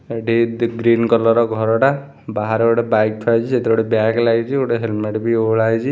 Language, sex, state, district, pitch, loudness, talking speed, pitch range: Odia, male, Odisha, Khordha, 115 Hz, -17 LUFS, 205 wpm, 110-115 Hz